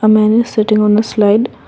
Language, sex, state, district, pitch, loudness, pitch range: English, female, Assam, Kamrup Metropolitan, 215 Hz, -12 LUFS, 210-225 Hz